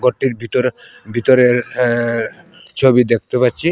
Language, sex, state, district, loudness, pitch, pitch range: Bengali, male, Tripura, Unakoti, -15 LUFS, 125 Hz, 120-130 Hz